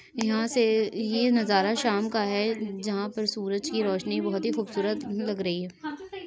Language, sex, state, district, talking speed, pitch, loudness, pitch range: Hindi, female, Uttar Pradesh, Ghazipur, 170 wpm, 215 Hz, -27 LUFS, 200-225 Hz